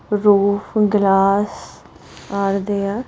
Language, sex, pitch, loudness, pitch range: English, female, 200 Hz, -17 LUFS, 195-210 Hz